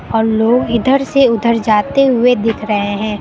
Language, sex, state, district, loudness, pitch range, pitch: Hindi, female, Uttar Pradesh, Lucknow, -13 LUFS, 220-250 Hz, 230 Hz